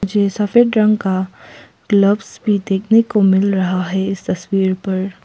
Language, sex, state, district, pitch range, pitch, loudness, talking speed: Hindi, female, Arunachal Pradesh, Papum Pare, 190-210 Hz, 195 Hz, -16 LUFS, 150 wpm